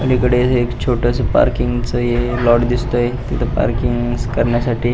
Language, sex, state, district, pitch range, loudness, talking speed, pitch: Marathi, male, Maharashtra, Pune, 120-125 Hz, -17 LUFS, 135 wpm, 120 Hz